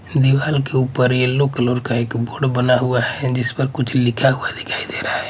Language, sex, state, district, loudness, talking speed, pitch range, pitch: Hindi, male, Odisha, Malkangiri, -18 LUFS, 225 wpm, 125-135 Hz, 125 Hz